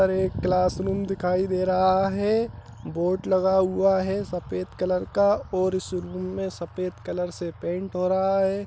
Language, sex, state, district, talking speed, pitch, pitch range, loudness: Hindi, male, Bihar, Saharsa, 180 wpm, 185 Hz, 180-195 Hz, -25 LUFS